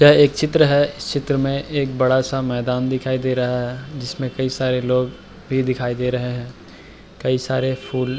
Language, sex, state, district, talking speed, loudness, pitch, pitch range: Hindi, male, Uttar Pradesh, Hamirpur, 200 wpm, -20 LUFS, 130 Hz, 125-135 Hz